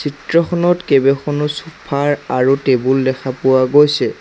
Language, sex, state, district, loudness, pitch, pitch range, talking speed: Assamese, male, Assam, Sonitpur, -15 LUFS, 140 Hz, 130-150 Hz, 130 wpm